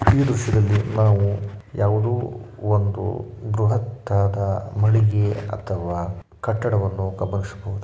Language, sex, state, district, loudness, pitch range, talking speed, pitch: Kannada, male, Karnataka, Shimoga, -22 LUFS, 100-110 Hz, 75 wpm, 105 Hz